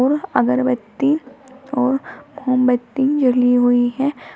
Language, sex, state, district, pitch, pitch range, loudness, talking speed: Hindi, female, Uttar Pradesh, Shamli, 265 Hz, 250-280 Hz, -18 LUFS, 95 wpm